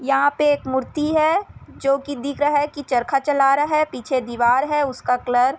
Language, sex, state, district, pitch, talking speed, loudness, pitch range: Hindi, female, Chhattisgarh, Bilaspur, 275 Hz, 225 wpm, -20 LUFS, 260-295 Hz